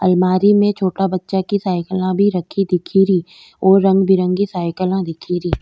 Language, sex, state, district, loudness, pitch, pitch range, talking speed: Rajasthani, female, Rajasthan, Nagaur, -16 LUFS, 190 Hz, 180-195 Hz, 160 wpm